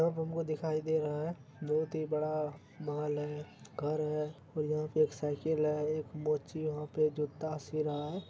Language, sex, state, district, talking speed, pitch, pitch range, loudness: Hindi, male, Bihar, Araria, 200 wpm, 155 Hz, 150-155 Hz, -35 LUFS